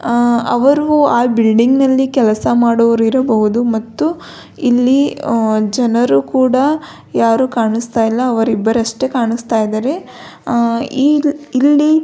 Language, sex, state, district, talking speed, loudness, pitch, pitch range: Kannada, female, Karnataka, Belgaum, 110 wpm, -13 LUFS, 240 Hz, 230-270 Hz